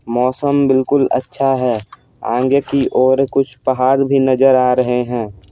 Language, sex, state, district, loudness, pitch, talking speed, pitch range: Hindi, male, Bihar, Patna, -15 LUFS, 130 Hz, 150 wpm, 125-135 Hz